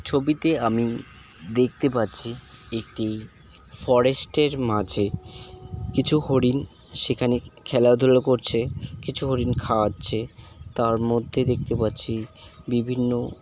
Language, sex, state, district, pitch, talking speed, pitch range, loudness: Bengali, male, West Bengal, Jalpaiguri, 120 Hz, 95 wpm, 115-130 Hz, -23 LUFS